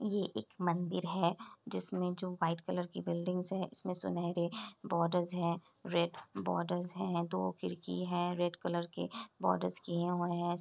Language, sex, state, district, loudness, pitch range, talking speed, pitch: Hindi, female, Bihar, Kishanganj, -33 LUFS, 170-180 Hz, 160 wpm, 175 Hz